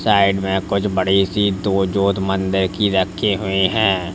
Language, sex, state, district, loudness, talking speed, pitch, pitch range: Hindi, male, Uttar Pradesh, Lalitpur, -18 LUFS, 145 wpm, 95 Hz, 95-100 Hz